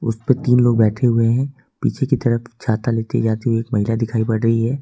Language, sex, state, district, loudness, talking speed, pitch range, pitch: Hindi, male, Jharkhand, Ranchi, -18 LUFS, 260 wpm, 115-125 Hz, 115 Hz